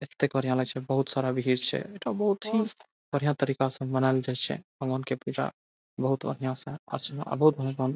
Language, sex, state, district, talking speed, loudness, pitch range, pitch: Maithili, male, Bihar, Saharsa, 175 wpm, -29 LUFS, 130-145 Hz, 135 Hz